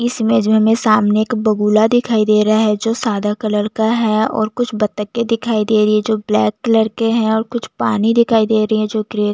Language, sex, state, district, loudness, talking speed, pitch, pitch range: Hindi, female, Chhattisgarh, Jashpur, -15 LUFS, 245 wpm, 220 Hz, 215-225 Hz